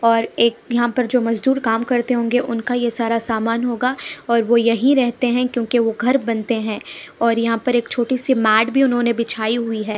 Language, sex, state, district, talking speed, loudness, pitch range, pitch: Hindi, female, Punjab, Pathankot, 215 wpm, -18 LUFS, 230-245 Hz, 235 Hz